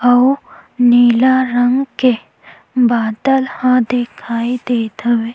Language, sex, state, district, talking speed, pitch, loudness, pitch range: Chhattisgarhi, female, Chhattisgarh, Sukma, 100 wpm, 245 Hz, -14 LUFS, 235-255 Hz